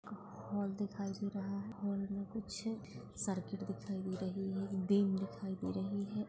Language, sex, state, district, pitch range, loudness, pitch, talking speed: Hindi, female, Goa, North and South Goa, 195-200 Hz, -40 LUFS, 200 Hz, 160 wpm